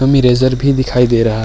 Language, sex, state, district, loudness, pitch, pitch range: Hindi, male, Uttar Pradesh, Hamirpur, -12 LUFS, 125 Hz, 120-135 Hz